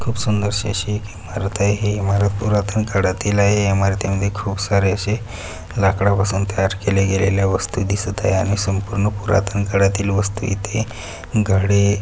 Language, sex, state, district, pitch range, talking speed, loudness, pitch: Marathi, male, Maharashtra, Pune, 95-105 Hz, 155 wpm, -19 LUFS, 100 Hz